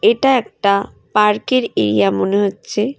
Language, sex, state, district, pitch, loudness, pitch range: Bengali, female, West Bengal, Alipurduar, 210 Hz, -16 LUFS, 200-250 Hz